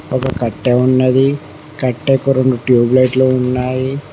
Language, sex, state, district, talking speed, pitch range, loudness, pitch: Telugu, male, Telangana, Mahabubabad, 130 wpm, 125-135 Hz, -14 LUFS, 130 Hz